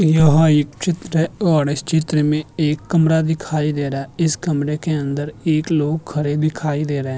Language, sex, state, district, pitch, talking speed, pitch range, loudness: Hindi, male, Maharashtra, Chandrapur, 155 Hz, 210 wpm, 150-160 Hz, -18 LUFS